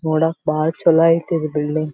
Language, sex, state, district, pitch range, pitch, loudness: Kannada, female, Karnataka, Belgaum, 155-165 Hz, 160 Hz, -17 LUFS